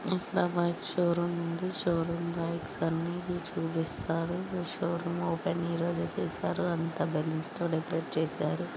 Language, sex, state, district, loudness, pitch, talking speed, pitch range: Telugu, female, Andhra Pradesh, Guntur, -31 LUFS, 170 Hz, 105 wpm, 165-175 Hz